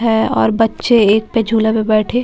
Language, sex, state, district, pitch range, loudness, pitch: Hindi, female, Bihar, Katihar, 220-230 Hz, -14 LUFS, 220 Hz